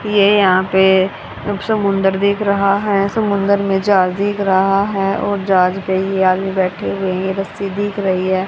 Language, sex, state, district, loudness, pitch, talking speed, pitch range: Hindi, female, Haryana, Jhajjar, -16 LUFS, 195 Hz, 185 wpm, 190-200 Hz